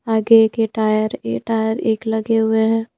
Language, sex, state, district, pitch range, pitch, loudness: Hindi, female, Madhya Pradesh, Bhopal, 220-225 Hz, 220 Hz, -17 LUFS